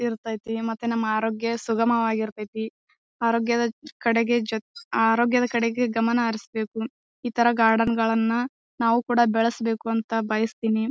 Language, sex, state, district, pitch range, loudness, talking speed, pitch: Kannada, female, Karnataka, Bijapur, 225-235 Hz, -24 LUFS, 120 wpm, 230 Hz